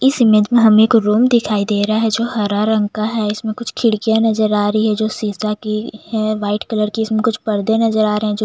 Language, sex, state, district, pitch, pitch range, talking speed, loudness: Hindi, female, Chhattisgarh, Jashpur, 215 Hz, 210-225 Hz, 270 wpm, -16 LUFS